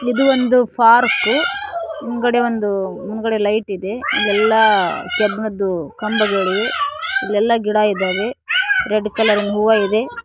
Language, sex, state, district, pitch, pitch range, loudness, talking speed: Kannada, female, Karnataka, Koppal, 220 Hz, 205-245 Hz, -17 LUFS, 105 wpm